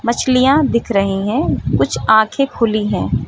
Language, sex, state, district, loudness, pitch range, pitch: Hindi, female, Uttar Pradesh, Lucknow, -15 LUFS, 215-265 Hz, 235 Hz